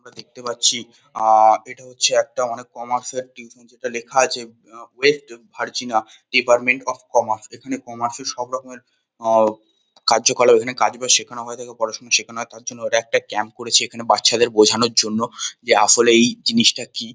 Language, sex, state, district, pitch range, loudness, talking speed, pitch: Bengali, male, West Bengal, North 24 Parganas, 115-130 Hz, -18 LUFS, 180 wpm, 120 Hz